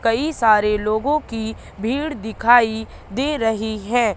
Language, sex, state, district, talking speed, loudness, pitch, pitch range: Hindi, female, Madhya Pradesh, Katni, 130 wpm, -19 LUFS, 225 Hz, 220-245 Hz